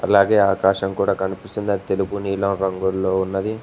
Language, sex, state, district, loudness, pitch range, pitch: Telugu, male, Telangana, Mahabubabad, -20 LUFS, 95-100 Hz, 95 Hz